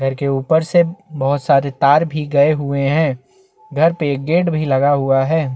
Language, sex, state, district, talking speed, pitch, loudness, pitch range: Hindi, male, Chhattisgarh, Bastar, 170 wpm, 145 Hz, -16 LUFS, 140-160 Hz